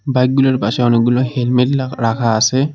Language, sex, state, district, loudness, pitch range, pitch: Bengali, male, West Bengal, Alipurduar, -15 LUFS, 120-130 Hz, 125 Hz